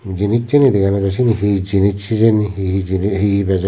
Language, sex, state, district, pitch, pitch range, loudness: Chakma, male, Tripura, Unakoti, 100 Hz, 95-110 Hz, -16 LUFS